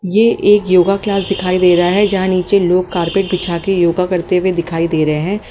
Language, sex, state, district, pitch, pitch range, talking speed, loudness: Hindi, female, Haryana, Jhajjar, 185 Hz, 175-195 Hz, 230 wpm, -14 LUFS